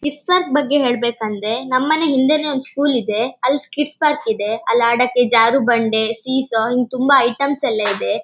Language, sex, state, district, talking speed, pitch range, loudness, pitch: Kannada, female, Karnataka, Shimoga, 160 wpm, 230-285 Hz, -17 LUFS, 255 Hz